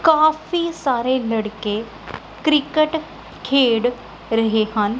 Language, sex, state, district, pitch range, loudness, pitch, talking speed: Punjabi, female, Punjab, Kapurthala, 225-310 Hz, -19 LUFS, 255 Hz, 85 wpm